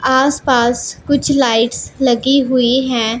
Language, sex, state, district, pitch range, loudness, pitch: Hindi, female, Punjab, Pathankot, 240-275 Hz, -14 LUFS, 260 Hz